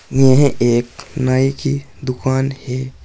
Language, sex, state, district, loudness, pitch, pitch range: Hindi, male, Uttar Pradesh, Saharanpur, -17 LUFS, 130 Hz, 130-135 Hz